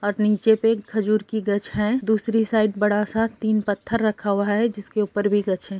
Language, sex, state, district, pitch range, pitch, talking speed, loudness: Hindi, female, Jharkhand, Sahebganj, 205-220 Hz, 210 Hz, 225 wpm, -22 LUFS